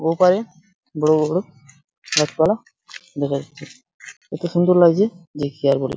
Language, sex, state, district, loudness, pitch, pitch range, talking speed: Bengali, male, West Bengal, Purulia, -19 LUFS, 160 Hz, 145-180 Hz, 100 wpm